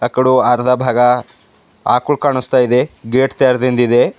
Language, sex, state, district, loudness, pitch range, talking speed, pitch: Kannada, male, Karnataka, Bidar, -14 LUFS, 125-130 Hz, 115 wpm, 125 Hz